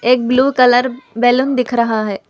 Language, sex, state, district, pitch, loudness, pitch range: Hindi, female, Telangana, Hyderabad, 245 Hz, -14 LUFS, 235-255 Hz